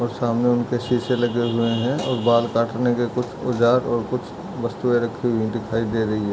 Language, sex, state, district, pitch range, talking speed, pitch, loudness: Hindi, male, Uttar Pradesh, Jyotiba Phule Nagar, 115-125 Hz, 210 wpm, 120 Hz, -22 LUFS